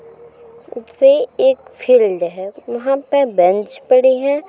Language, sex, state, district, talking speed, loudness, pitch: Hindi, female, Uttar Pradesh, Muzaffarnagar, 120 wpm, -15 LUFS, 275 Hz